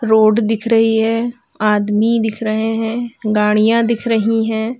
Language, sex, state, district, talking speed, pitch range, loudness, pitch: Hindi, female, Uttar Pradesh, Lalitpur, 150 wpm, 220-230 Hz, -16 LUFS, 225 Hz